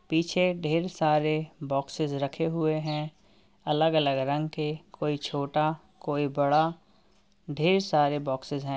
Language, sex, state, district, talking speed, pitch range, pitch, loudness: Hindi, female, Uttar Pradesh, Varanasi, 130 wpm, 145-165 Hz, 155 Hz, -28 LUFS